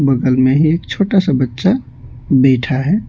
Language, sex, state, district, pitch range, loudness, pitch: Hindi, male, West Bengal, Alipurduar, 130-155 Hz, -14 LUFS, 135 Hz